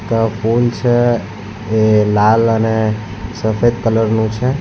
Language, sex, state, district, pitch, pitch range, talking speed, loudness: Gujarati, male, Gujarat, Valsad, 110 Hz, 110-115 Hz, 115 wpm, -15 LUFS